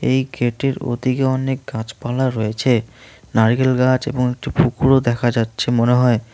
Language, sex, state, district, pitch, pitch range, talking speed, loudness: Bengali, male, West Bengal, Cooch Behar, 125 Hz, 115-130 Hz, 140 wpm, -18 LUFS